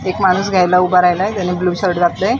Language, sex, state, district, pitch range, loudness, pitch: Marathi, female, Maharashtra, Mumbai Suburban, 180-190 Hz, -14 LUFS, 180 Hz